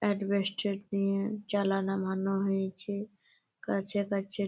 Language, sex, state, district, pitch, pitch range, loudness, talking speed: Bengali, female, West Bengal, Malda, 200 Hz, 195-200 Hz, -31 LUFS, 95 wpm